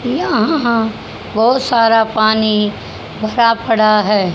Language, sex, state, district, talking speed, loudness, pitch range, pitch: Hindi, female, Haryana, Jhajjar, 95 wpm, -14 LUFS, 215-235 Hz, 225 Hz